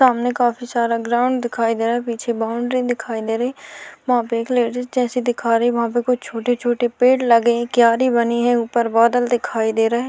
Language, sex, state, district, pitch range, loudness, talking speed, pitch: Hindi, female, Chhattisgarh, Korba, 230-245 Hz, -18 LUFS, 225 wpm, 240 Hz